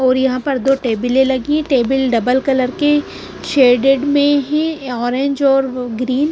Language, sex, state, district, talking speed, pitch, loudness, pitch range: Hindi, female, Punjab, Pathankot, 160 wpm, 265 Hz, -15 LUFS, 255-285 Hz